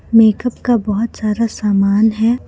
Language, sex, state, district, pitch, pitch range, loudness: Hindi, female, Jharkhand, Palamu, 220 Hz, 210-230 Hz, -15 LUFS